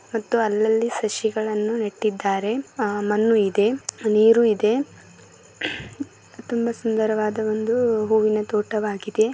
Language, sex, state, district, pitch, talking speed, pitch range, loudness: Kannada, female, Karnataka, Belgaum, 220 Hz, 90 wpm, 210-230 Hz, -22 LUFS